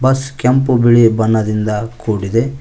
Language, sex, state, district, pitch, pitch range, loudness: Kannada, male, Karnataka, Koppal, 115 Hz, 110-130 Hz, -14 LUFS